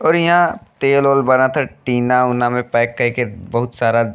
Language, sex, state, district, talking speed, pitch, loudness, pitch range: Bhojpuri, male, Uttar Pradesh, Deoria, 190 wpm, 125 Hz, -16 LUFS, 120-140 Hz